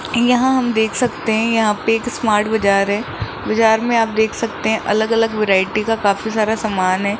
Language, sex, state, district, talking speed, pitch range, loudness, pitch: Hindi, male, Rajasthan, Jaipur, 210 wpm, 210-225 Hz, -17 LUFS, 220 Hz